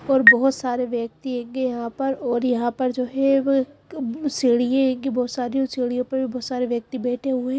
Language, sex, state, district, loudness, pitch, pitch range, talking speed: Hindi, female, Madhya Pradesh, Bhopal, -22 LUFS, 255 Hz, 245-270 Hz, 220 wpm